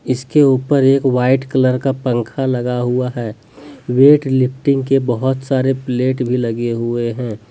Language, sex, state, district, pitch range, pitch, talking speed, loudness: Hindi, male, Jharkhand, Deoghar, 125-135 Hz, 130 Hz, 160 wpm, -16 LUFS